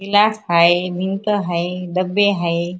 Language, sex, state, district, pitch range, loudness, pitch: Marathi, female, Maharashtra, Chandrapur, 175-205 Hz, -18 LUFS, 180 Hz